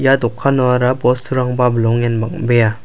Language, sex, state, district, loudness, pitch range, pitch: Garo, male, Meghalaya, South Garo Hills, -15 LUFS, 115-130 Hz, 125 Hz